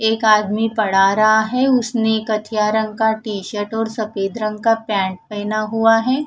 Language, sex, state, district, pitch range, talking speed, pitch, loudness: Hindi, female, Punjab, Fazilka, 210-225 Hz, 180 wpm, 220 Hz, -18 LUFS